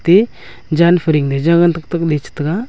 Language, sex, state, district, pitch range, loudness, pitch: Wancho, male, Arunachal Pradesh, Longding, 155-175 Hz, -14 LUFS, 170 Hz